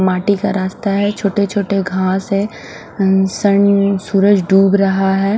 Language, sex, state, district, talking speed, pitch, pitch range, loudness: Hindi, male, Punjab, Fazilka, 155 wpm, 195 Hz, 190-200 Hz, -15 LUFS